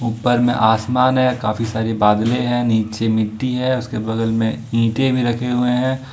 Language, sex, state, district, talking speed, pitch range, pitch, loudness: Hindi, male, Jharkhand, Ranchi, 185 wpm, 110-125 Hz, 120 Hz, -18 LUFS